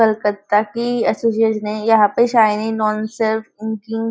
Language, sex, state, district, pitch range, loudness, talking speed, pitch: Hindi, female, Maharashtra, Nagpur, 215-225 Hz, -17 LUFS, 85 wpm, 220 Hz